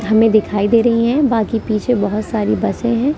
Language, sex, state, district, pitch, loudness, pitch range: Hindi, female, Delhi, New Delhi, 225 Hz, -16 LUFS, 215-235 Hz